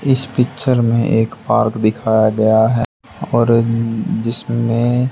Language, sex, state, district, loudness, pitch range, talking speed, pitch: Hindi, male, Haryana, Charkhi Dadri, -16 LUFS, 110-120 Hz, 115 wpm, 115 Hz